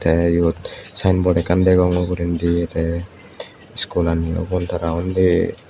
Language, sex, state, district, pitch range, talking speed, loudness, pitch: Chakma, male, Tripura, Unakoti, 85-90 Hz, 115 wpm, -19 LUFS, 85 Hz